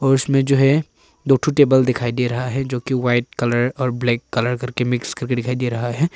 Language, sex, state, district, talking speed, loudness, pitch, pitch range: Hindi, male, Arunachal Pradesh, Papum Pare, 235 wpm, -19 LUFS, 125 Hz, 120-135 Hz